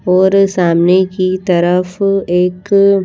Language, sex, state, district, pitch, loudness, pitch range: Hindi, female, Madhya Pradesh, Bhopal, 185 Hz, -12 LUFS, 180-195 Hz